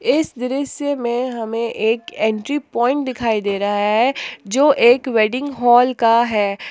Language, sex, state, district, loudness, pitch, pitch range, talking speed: Hindi, female, Jharkhand, Palamu, -18 LUFS, 240 Hz, 220-270 Hz, 150 wpm